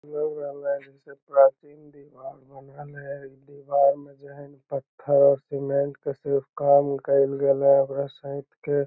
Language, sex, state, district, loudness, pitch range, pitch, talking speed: Magahi, male, Bihar, Lakhisarai, -23 LUFS, 140-145 Hz, 140 Hz, 140 wpm